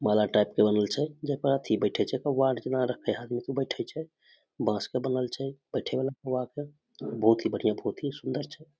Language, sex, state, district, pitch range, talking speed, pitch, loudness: Maithili, male, Bihar, Samastipur, 120-145 Hz, 170 wpm, 130 Hz, -29 LUFS